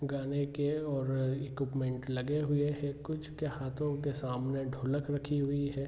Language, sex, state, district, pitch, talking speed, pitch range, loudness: Hindi, male, Bihar, Araria, 140 Hz, 165 wpm, 135-145 Hz, -34 LUFS